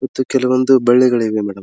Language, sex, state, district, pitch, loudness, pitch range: Kannada, male, Karnataka, Dharwad, 130 Hz, -14 LUFS, 115-130 Hz